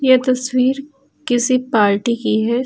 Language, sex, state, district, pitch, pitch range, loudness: Hindi, female, Uttar Pradesh, Lucknow, 255 Hz, 235-260 Hz, -17 LUFS